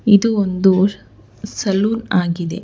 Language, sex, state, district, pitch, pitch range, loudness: Kannada, female, Karnataka, Bangalore, 195 Hz, 185-205 Hz, -17 LUFS